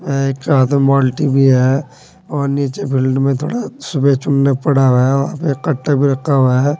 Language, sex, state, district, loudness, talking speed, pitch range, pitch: Hindi, male, Uttar Pradesh, Saharanpur, -15 LUFS, 185 wpm, 135-140 Hz, 135 Hz